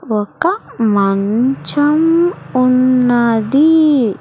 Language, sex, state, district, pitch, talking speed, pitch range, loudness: Telugu, female, Andhra Pradesh, Sri Satya Sai, 255 Hz, 45 wpm, 225-305 Hz, -13 LUFS